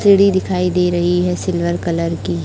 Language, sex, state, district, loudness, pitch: Hindi, male, Chhattisgarh, Raipur, -16 LUFS, 175 Hz